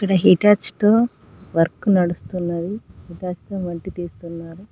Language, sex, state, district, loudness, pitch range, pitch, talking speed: Telugu, female, Telangana, Mahabubabad, -20 LUFS, 170-200 Hz, 180 Hz, 115 wpm